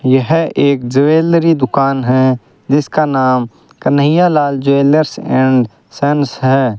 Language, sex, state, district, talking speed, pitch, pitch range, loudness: Hindi, male, Rajasthan, Bikaner, 105 wpm, 140 Hz, 130-150 Hz, -13 LUFS